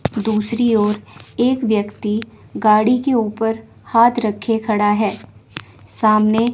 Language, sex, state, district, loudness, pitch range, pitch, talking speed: Hindi, female, Chandigarh, Chandigarh, -17 LUFS, 210-230 Hz, 215 Hz, 110 wpm